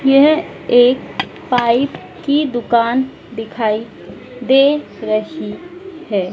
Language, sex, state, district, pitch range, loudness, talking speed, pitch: Hindi, female, Madhya Pradesh, Dhar, 225-285 Hz, -16 LUFS, 85 wpm, 250 Hz